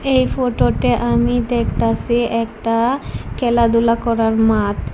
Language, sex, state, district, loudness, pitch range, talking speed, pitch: Bengali, female, Tripura, West Tripura, -17 LUFS, 185-240 Hz, 95 wpm, 230 Hz